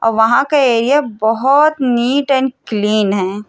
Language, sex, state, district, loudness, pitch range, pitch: Hindi, female, Uttar Pradesh, Hamirpur, -14 LUFS, 215-275 Hz, 245 Hz